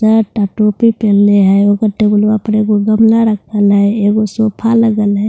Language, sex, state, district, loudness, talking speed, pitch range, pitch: Hindi, female, Bihar, Katihar, -11 LUFS, 45 wpm, 205-220 Hz, 215 Hz